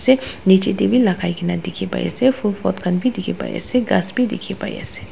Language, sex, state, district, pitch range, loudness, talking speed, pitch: Nagamese, female, Nagaland, Dimapur, 180-250 Hz, -19 LUFS, 235 wpm, 210 Hz